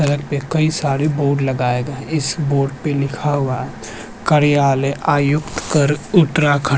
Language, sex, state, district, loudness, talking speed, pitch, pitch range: Hindi, male, Uttarakhand, Tehri Garhwal, -17 LUFS, 170 wpm, 145 Hz, 140-150 Hz